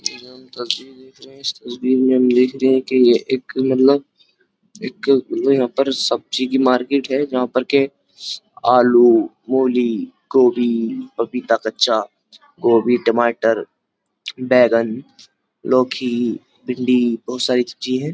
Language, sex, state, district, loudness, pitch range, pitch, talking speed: Hindi, male, Uttar Pradesh, Jyotiba Phule Nagar, -17 LUFS, 120-130 Hz, 125 Hz, 140 wpm